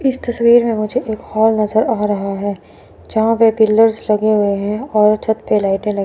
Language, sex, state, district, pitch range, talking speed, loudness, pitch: Hindi, female, Chandigarh, Chandigarh, 210-225 Hz, 210 wpm, -15 LUFS, 215 Hz